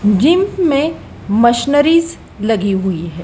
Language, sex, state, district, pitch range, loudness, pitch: Hindi, female, Madhya Pradesh, Dhar, 200-325 Hz, -14 LUFS, 235 Hz